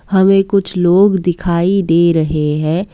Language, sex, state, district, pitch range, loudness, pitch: Hindi, female, Assam, Kamrup Metropolitan, 170-195 Hz, -13 LUFS, 180 Hz